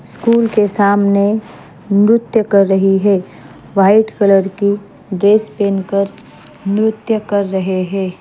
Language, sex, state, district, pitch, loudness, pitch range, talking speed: Hindi, female, Maharashtra, Mumbai Suburban, 200 Hz, -14 LUFS, 195-215 Hz, 125 wpm